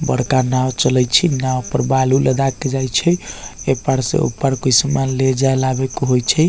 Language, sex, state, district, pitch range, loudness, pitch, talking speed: Bajjika, male, Bihar, Vaishali, 130-135 Hz, -17 LUFS, 130 Hz, 215 wpm